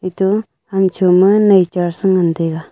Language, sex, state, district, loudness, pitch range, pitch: Wancho, female, Arunachal Pradesh, Longding, -14 LUFS, 175-195 Hz, 185 Hz